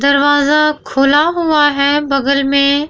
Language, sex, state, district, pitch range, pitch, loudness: Hindi, female, Bihar, Vaishali, 280-295 Hz, 285 Hz, -12 LUFS